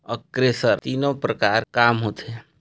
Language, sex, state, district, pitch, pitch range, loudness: Hindi, male, Chhattisgarh, Raigarh, 120 Hz, 115-130 Hz, -21 LUFS